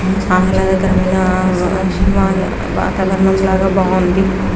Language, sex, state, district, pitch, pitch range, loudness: Telugu, female, Andhra Pradesh, Krishna, 190 Hz, 185-190 Hz, -14 LUFS